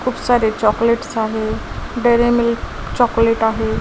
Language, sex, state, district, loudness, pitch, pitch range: Marathi, female, Maharashtra, Washim, -17 LUFS, 230 Hz, 220-240 Hz